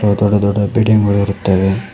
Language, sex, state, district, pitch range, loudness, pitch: Kannada, male, Karnataka, Koppal, 100-105 Hz, -14 LUFS, 100 Hz